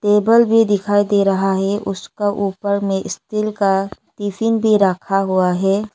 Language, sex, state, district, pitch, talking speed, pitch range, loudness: Hindi, female, Arunachal Pradesh, Lower Dibang Valley, 200 Hz, 160 wpm, 195-210 Hz, -17 LUFS